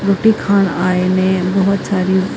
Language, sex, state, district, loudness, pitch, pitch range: Punjabi, female, Karnataka, Bangalore, -15 LUFS, 190 Hz, 185-200 Hz